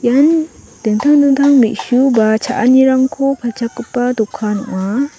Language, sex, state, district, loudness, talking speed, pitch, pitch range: Garo, female, Meghalaya, West Garo Hills, -13 LUFS, 105 wpm, 250 Hz, 225-275 Hz